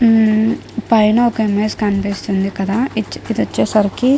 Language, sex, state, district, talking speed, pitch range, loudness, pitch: Telugu, female, Andhra Pradesh, Guntur, 115 wpm, 205-230 Hz, -16 LUFS, 220 Hz